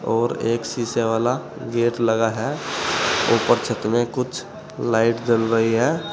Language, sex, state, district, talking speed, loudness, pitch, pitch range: Hindi, male, Uttar Pradesh, Saharanpur, 145 wpm, -21 LUFS, 115 Hz, 115-120 Hz